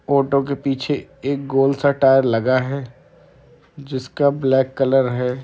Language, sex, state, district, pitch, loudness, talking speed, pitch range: Hindi, male, Uttar Pradesh, Muzaffarnagar, 135 Hz, -19 LUFS, 130 wpm, 130-140 Hz